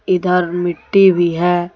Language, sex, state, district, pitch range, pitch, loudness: Hindi, male, Jharkhand, Deoghar, 175-180 Hz, 175 Hz, -15 LUFS